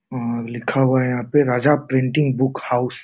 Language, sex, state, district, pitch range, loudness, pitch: Hindi, male, Bihar, Jamui, 125-135 Hz, -19 LUFS, 130 Hz